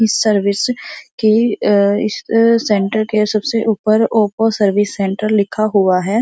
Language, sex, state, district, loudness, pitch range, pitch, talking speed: Hindi, female, Uttar Pradesh, Muzaffarnagar, -15 LUFS, 205-225 Hz, 215 Hz, 125 wpm